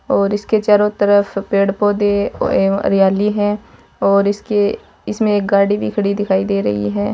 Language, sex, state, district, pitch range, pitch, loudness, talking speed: Marwari, female, Rajasthan, Churu, 200-205 Hz, 205 Hz, -16 LUFS, 160 wpm